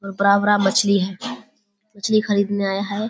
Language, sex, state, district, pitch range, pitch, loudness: Hindi, female, Bihar, Kishanganj, 200-205 Hz, 200 Hz, -19 LUFS